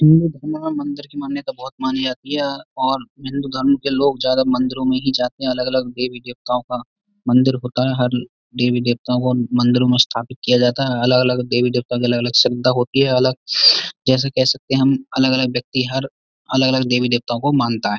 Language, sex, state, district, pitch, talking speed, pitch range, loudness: Hindi, male, Uttar Pradesh, Budaun, 130 Hz, 200 wpm, 125-135 Hz, -18 LUFS